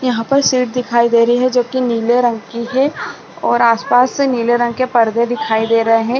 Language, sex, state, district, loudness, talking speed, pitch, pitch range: Hindi, female, Chhattisgarh, Balrampur, -14 LUFS, 165 wpm, 240 Hz, 235-255 Hz